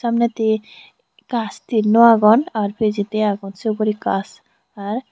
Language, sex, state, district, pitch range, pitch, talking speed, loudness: Chakma, female, Tripura, Unakoti, 210-230 Hz, 220 Hz, 115 wpm, -18 LUFS